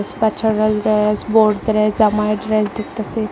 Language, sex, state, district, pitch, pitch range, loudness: Bengali, female, Tripura, West Tripura, 215 Hz, 210-220 Hz, -17 LUFS